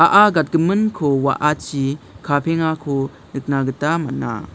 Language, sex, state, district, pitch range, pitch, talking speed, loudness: Garo, male, Meghalaya, South Garo Hills, 135-165 Hz, 150 Hz, 90 wpm, -19 LUFS